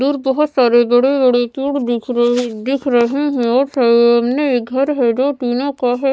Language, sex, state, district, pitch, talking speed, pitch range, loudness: Hindi, female, Maharashtra, Mumbai Suburban, 255 Hz, 205 wpm, 240-275 Hz, -15 LUFS